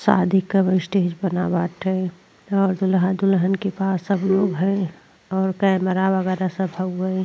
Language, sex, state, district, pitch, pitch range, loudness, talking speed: Bhojpuri, female, Uttar Pradesh, Deoria, 190 Hz, 185-195 Hz, -21 LUFS, 150 wpm